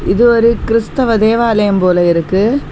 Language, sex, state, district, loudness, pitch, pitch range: Tamil, female, Tamil Nadu, Kanyakumari, -12 LUFS, 225 Hz, 190-235 Hz